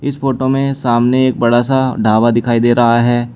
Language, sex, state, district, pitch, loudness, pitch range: Hindi, male, Uttar Pradesh, Shamli, 120 Hz, -13 LUFS, 120-130 Hz